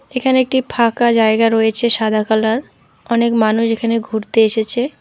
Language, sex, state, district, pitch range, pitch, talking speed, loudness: Bengali, female, West Bengal, Alipurduar, 220-240 Hz, 230 Hz, 145 wpm, -15 LUFS